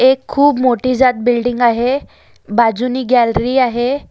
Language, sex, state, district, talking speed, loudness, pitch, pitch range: Marathi, female, Maharashtra, Solapur, 130 wpm, -14 LUFS, 250 Hz, 240-260 Hz